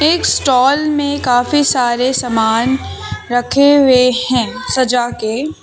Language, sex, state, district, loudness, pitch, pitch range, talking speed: Hindi, female, Jharkhand, Deoghar, -13 LUFS, 255 Hz, 245-285 Hz, 115 wpm